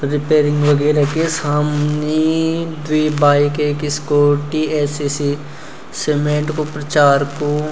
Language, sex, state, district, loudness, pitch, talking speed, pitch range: Garhwali, male, Uttarakhand, Uttarkashi, -16 LUFS, 150 Hz, 100 wpm, 145-155 Hz